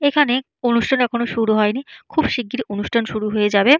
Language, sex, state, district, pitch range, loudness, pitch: Bengali, female, West Bengal, Jalpaiguri, 215-265 Hz, -19 LUFS, 240 Hz